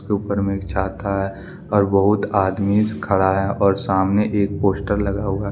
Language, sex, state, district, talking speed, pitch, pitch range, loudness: Hindi, male, Jharkhand, Deoghar, 185 wpm, 100 Hz, 95-100 Hz, -20 LUFS